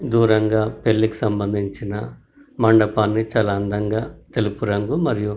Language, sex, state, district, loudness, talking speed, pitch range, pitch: Telugu, male, Telangana, Karimnagar, -20 LUFS, 110 wpm, 105-110 Hz, 110 Hz